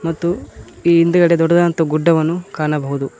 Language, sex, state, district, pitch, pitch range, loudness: Kannada, male, Karnataka, Koppal, 165 Hz, 150-170 Hz, -15 LUFS